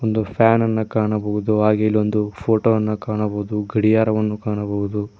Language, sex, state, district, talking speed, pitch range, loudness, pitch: Kannada, male, Karnataka, Koppal, 105 wpm, 105-110 Hz, -19 LUFS, 105 Hz